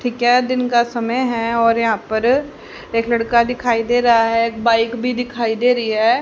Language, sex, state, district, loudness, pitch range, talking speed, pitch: Hindi, female, Haryana, Charkhi Dadri, -17 LUFS, 230-245 Hz, 195 wpm, 235 Hz